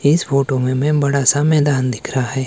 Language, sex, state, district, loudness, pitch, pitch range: Hindi, male, Himachal Pradesh, Shimla, -16 LUFS, 140 Hz, 130-145 Hz